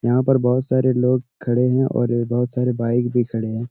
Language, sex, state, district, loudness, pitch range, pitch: Hindi, male, Uttar Pradesh, Etah, -19 LUFS, 120-125 Hz, 125 Hz